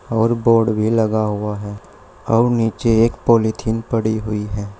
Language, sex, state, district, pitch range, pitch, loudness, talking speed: Hindi, male, Uttar Pradesh, Shamli, 105-115 Hz, 110 Hz, -18 LUFS, 165 wpm